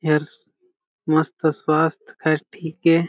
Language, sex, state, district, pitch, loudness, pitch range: Chhattisgarhi, male, Chhattisgarh, Jashpur, 160 Hz, -21 LUFS, 155-170 Hz